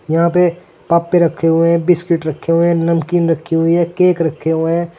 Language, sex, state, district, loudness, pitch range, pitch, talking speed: Hindi, male, Uttar Pradesh, Saharanpur, -14 LUFS, 165-170 Hz, 170 Hz, 205 wpm